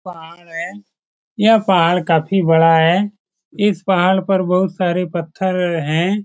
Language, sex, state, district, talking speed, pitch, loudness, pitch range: Hindi, male, Bihar, Supaul, 135 wpm, 185 Hz, -16 LUFS, 170-195 Hz